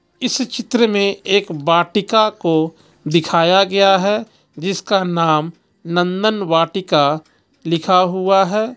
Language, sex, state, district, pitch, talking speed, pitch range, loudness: Hindi, male, Jharkhand, Ranchi, 190 Hz, 110 wpm, 165-205 Hz, -16 LUFS